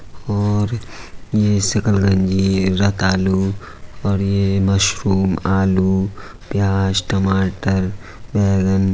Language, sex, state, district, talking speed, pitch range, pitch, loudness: Hindi, male, Uttar Pradesh, Budaun, 85 wpm, 95-100 Hz, 95 Hz, -18 LUFS